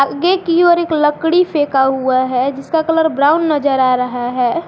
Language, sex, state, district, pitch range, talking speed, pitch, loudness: Hindi, female, Jharkhand, Garhwa, 260-330 Hz, 190 wpm, 295 Hz, -14 LUFS